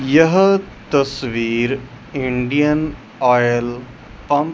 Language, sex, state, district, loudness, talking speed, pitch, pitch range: Hindi, male, Chandigarh, Chandigarh, -17 LUFS, 80 wpm, 130 Hz, 120-145 Hz